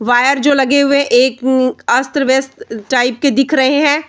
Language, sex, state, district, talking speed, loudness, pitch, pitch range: Hindi, female, Bihar, Samastipur, 175 wpm, -13 LUFS, 270 Hz, 255-280 Hz